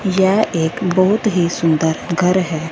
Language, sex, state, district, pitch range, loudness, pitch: Hindi, female, Punjab, Fazilka, 160-190 Hz, -16 LUFS, 180 Hz